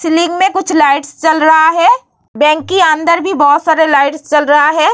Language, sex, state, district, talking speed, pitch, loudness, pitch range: Hindi, female, Bihar, Vaishali, 205 wpm, 315 Hz, -10 LUFS, 295-340 Hz